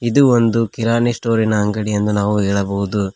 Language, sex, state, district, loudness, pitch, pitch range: Kannada, male, Karnataka, Koppal, -17 LUFS, 110 Hz, 105-115 Hz